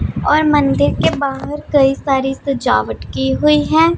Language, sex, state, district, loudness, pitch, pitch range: Hindi, female, Punjab, Pathankot, -15 LUFS, 275 Hz, 265-300 Hz